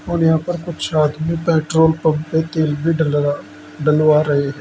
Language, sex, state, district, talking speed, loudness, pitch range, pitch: Hindi, male, Uttar Pradesh, Saharanpur, 180 wpm, -17 LUFS, 150-160 Hz, 155 Hz